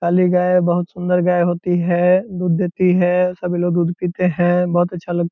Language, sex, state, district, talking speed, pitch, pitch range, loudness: Hindi, male, Bihar, Purnia, 225 wpm, 180 Hz, 175-180 Hz, -17 LUFS